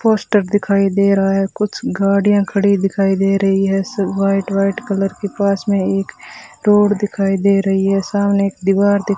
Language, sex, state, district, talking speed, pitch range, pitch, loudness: Hindi, female, Rajasthan, Bikaner, 190 wpm, 195-200 Hz, 195 Hz, -16 LUFS